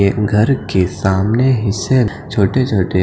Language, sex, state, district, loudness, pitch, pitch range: Hindi, male, Himachal Pradesh, Shimla, -15 LUFS, 105 Hz, 95-120 Hz